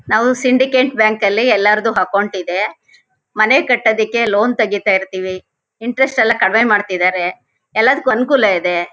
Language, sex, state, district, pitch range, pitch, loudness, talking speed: Kannada, female, Karnataka, Shimoga, 190-245 Hz, 220 Hz, -14 LUFS, 135 wpm